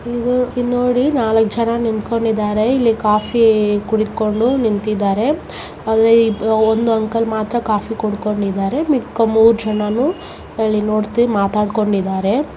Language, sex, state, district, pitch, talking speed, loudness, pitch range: Kannada, male, Karnataka, Gulbarga, 220 Hz, 100 wpm, -16 LUFS, 215-235 Hz